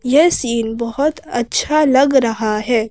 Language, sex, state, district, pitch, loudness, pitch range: Hindi, female, Madhya Pradesh, Bhopal, 245 Hz, -16 LUFS, 230-285 Hz